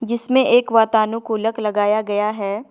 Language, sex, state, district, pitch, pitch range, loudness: Hindi, female, Jharkhand, Ranchi, 220 Hz, 210-230 Hz, -18 LUFS